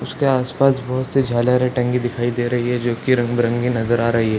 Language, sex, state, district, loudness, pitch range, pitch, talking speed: Hindi, male, Bihar, Sitamarhi, -19 LUFS, 120-125 Hz, 120 Hz, 245 wpm